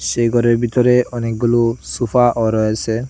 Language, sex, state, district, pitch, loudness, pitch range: Bengali, male, Assam, Hailakandi, 120 Hz, -16 LUFS, 115-120 Hz